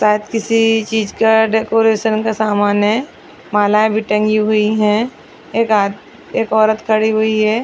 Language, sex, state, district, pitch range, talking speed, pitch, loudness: Hindi, female, Chhattisgarh, Raigarh, 210-220 Hz, 155 wpm, 215 Hz, -15 LUFS